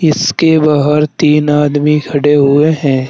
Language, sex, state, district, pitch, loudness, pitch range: Hindi, male, Uttar Pradesh, Saharanpur, 150 Hz, -11 LUFS, 145-155 Hz